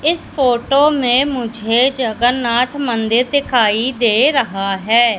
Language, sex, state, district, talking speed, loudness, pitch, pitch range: Hindi, female, Madhya Pradesh, Katni, 115 wpm, -15 LUFS, 245 Hz, 230-270 Hz